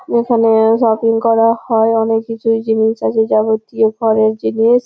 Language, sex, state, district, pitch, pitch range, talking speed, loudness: Bengali, female, West Bengal, Malda, 225 Hz, 220-230 Hz, 150 wpm, -14 LUFS